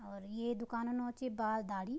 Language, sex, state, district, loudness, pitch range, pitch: Garhwali, female, Uttarakhand, Tehri Garhwal, -39 LUFS, 215-240 Hz, 230 Hz